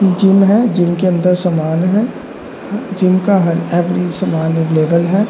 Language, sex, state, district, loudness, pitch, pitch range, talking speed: Hindi, male, Uttar Pradesh, Jalaun, -14 LUFS, 180 Hz, 170-195 Hz, 125 wpm